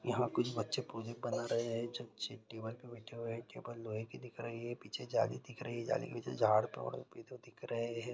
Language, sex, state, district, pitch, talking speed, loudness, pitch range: Maithili, male, Bihar, Supaul, 115 Hz, 220 wpm, -40 LUFS, 115-120 Hz